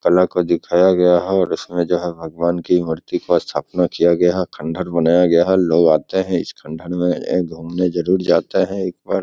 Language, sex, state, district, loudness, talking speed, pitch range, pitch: Hindi, male, Bihar, Begusarai, -17 LUFS, 220 wpm, 85-90 Hz, 90 Hz